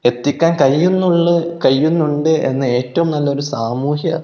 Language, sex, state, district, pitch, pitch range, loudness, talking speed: Malayalam, male, Kerala, Kozhikode, 150 Hz, 135-165 Hz, -15 LUFS, 100 wpm